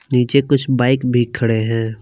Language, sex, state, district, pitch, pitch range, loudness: Hindi, male, Jharkhand, Palamu, 125 Hz, 115-130 Hz, -16 LUFS